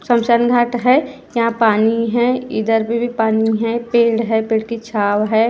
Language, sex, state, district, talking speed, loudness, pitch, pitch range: Hindi, female, Maharashtra, Gondia, 185 wpm, -16 LUFS, 230 Hz, 220-240 Hz